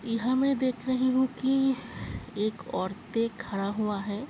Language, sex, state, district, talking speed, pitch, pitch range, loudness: Hindi, female, Uttar Pradesh, Hamirpur, 155 wpm, 240 Hz, 210-260 Hz, -29 LUFS